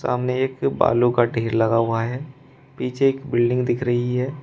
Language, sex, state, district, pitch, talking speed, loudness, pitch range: Hindi, male, Uttar Pradesh, Shamli, 125 Hz, 200 wpm, -21 LUFS, 120-130 Hz